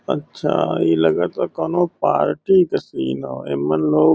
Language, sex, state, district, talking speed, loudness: Bhojpuri, male, Uttar Pradesh, Varanasi, 160 wpm, -19 LUFS